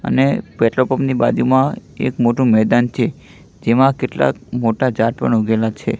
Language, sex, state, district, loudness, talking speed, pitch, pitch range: Gujarati, male, Gujarat, Gandhinagar, -17 LUFS, 160 wpm, 120 Hz, 115-130 Hz